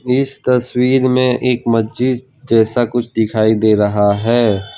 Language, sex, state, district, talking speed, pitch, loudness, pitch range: Hindi, male, Gujarat, Valsad, 140 wpm, 120 Hz, -15 LUFS, 110-125 Hz